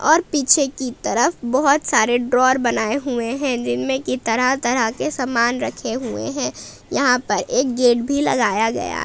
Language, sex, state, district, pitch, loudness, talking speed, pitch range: Hindi, female, Jharkhand, Palamu, 250 Hz, -19 LUFS, 170 wpm, 235-275 Hz